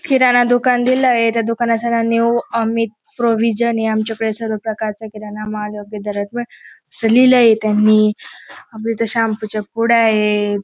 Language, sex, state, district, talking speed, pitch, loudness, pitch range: Marathi, female, Maharashtra, Dhule, 150 wpm, 225 Hz, -16 LUFS, 215-235 Hz